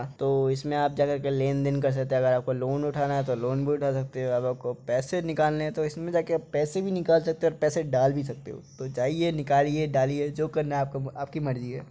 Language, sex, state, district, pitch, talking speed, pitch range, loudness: Maithili, male, Bihar, Begusarai, 140 Hz, 255 wpm, 135-155 Hz, -27 LUFS